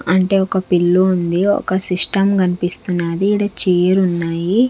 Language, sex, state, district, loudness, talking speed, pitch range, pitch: Telugu, female, Andhra Pradesh, Sri Satya Sai, -15 LUFS, 140 wpm, 180-195 Hz, 185 Hz